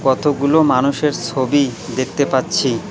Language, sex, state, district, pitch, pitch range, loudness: Bengali, male, West Bengal, Cooch Behar, 140 Hz, 130-150 Hz, -17 LUFS